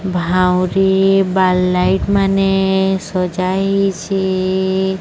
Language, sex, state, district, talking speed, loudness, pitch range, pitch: Odia, male, Odisha, Sambalpur, 60 wpm, -15 LUFS, 185-195 Hz, 190 Hz